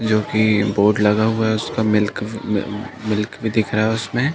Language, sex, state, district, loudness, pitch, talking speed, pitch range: Hindi, male, Chhattisgarh, Bastar, -19 LUFS, 110 Hz, 180 wpm, 105-110 Hz